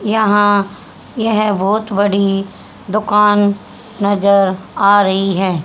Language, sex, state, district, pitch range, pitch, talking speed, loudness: Hindi, female, Haryana, Charkhi Dadri, 195-210 Hz, 205 Hz, 95 wpm, -14 LUFS